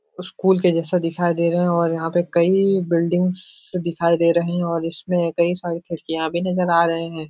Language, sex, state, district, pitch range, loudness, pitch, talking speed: Hindi, male, Bihar, Supaul, 170-180 Hz, -20 LUFS, 170 Hz, 215 wpm